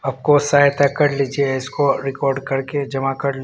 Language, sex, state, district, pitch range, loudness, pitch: Hindi, male, Bihar, Katihar, 135-145 Hz, -18 LUFS, 140 Hz